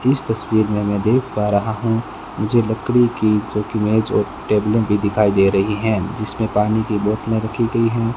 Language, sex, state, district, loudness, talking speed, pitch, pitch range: Hindi, male, Rajasthan, Bikaner, -18 LUFS, 205 wpm, 110 Hz, 105-115 Hz